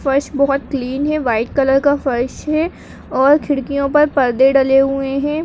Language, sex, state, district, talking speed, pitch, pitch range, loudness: Hindi, female, Uttarakhand, Uttarkashi, 175 wpm, 275 Hz, 270-290 Hz, -16 LUFS